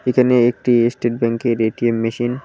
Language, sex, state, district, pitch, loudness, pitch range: Bengali, male, West Bengal, Cooch Behar, 120 Hz, -17 LUFS, 115-125 Hz